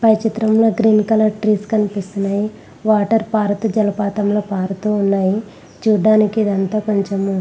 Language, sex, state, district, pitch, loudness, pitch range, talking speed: Telugu, female, Andhra Pradesh, Visakhapatnam, 210 Hz, -17 LUFS, 200-220 Hz, 115 wpm